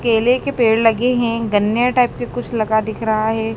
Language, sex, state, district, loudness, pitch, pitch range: Hindi, female, Madhya Pradesh, Dhar, -17 LUFS, 225 Hz, 220-240 Hz